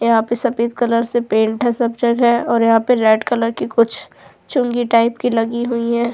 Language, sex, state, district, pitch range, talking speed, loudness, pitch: Hindi, female, Goa, North and South Goa, 230-240 Hz, 215 wpm, -16 LUFS, 235 Hz